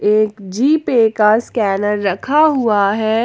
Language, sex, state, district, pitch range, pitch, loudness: Hindi, female, Jharkhand, Ranchi, 205-240 Hz, 215 Hz, -15 LUFS